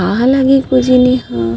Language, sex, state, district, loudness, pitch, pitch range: Chhattisgarhi, female, Chhattisgarh, Sarguja, -11 LUFS, 255 Hz, 200-265 Hz